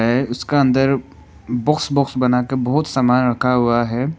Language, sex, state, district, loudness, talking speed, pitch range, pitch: Hindi, male, Arunachal Pradesh, Papum Pare, -18 LUFS, 170 wpm, 120-135 Hz, 125 Hz